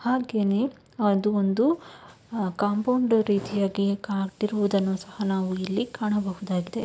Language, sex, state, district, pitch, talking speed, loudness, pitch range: Kannada, female, Karnataka, Mysore, 205 Hz, 95 wpm, -26 LUFS, 195-225 Hz